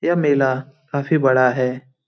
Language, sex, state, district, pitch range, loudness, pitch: Hindi, male, Bihar, Lakhisarai, 130-145 Hz, -19 LUFS, 135 Hz